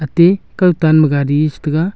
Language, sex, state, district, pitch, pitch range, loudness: Wancho, male, Arunachal Pradesh, Longding, 155 Hz, 150-175 Hz, -13 LUFS